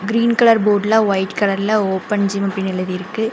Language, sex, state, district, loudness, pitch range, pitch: Tamil, female, Karnataka, Bangalore, -17 LUFS, 195-220 Hz, 205 Hz